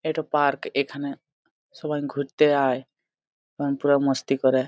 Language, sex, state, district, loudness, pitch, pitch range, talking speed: Bengali, male, Jharkhand, Jamtara, -24 LUFS, 140 Hz, 135-145 Hz, 140 wpm